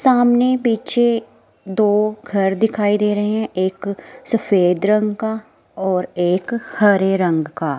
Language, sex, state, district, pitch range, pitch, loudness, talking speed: Hindi, female, Himachal Pradesh, Shimla, 190-225 Hz, 210 Hz, -18 LUFS, 130 wpm